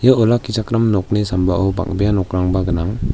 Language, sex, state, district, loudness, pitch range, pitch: Garo, male, Meghalaya, South Garo Hills, -17 LUFS, 95-110 Hz, 100 Hz